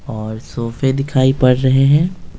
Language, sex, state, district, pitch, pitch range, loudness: Hindi, male, Bihar, Patna, 130 Hz, 120-135 Hz, -15 LUFS